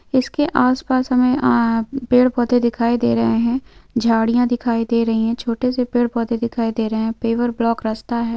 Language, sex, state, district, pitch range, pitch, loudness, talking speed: Hindi, female, Chhattisgarh, Bilaspur, 230-250 Hz, 235 Hz, -18 LUFS, 200 wpm